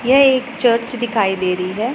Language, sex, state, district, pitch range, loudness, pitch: Hindi, female, Punjab, Pathankot, 200-250 Hz, -17 LUFS, 240 Hz